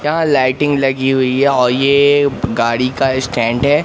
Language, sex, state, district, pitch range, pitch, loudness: Hindi, male, Madhya Pradesh, Katni, 125-140 Hz, 135 Hz, -14 LUFS